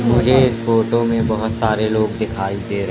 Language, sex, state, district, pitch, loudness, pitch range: Hindi, male, Madhya Pradesh, Katni, 110 Hz, -17 LUFS, 110-115 Hz